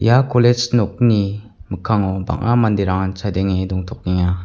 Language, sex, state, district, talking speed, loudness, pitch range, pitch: Garo, male, Meghalaya, West Garo Hills, 110 wpm, -18 LUFS, 95-115 Hz, 100 Hz